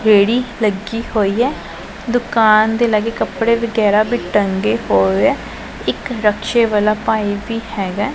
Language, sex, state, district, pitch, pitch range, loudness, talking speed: Punjabi, female, Punjab, Pathankot, 215 Hz, 205-230 Hz, -16 LUFS, 140 wpm